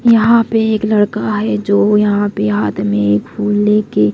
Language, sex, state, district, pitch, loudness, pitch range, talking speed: Hindi, female, Odisha, Malkangiri, 210 Hz, -14 LUFS, 200-215 Hz, 175 wpm